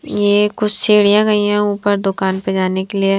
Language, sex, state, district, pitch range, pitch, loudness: Hindi, female, Himachal Pradesh, Shimla, 195-210 Hz, 205 Hz, -15 LUFS